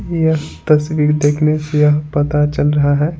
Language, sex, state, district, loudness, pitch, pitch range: Hindi, male, Bihar, Patna, -15 LUFS, 150 Hz, 150-155 Hz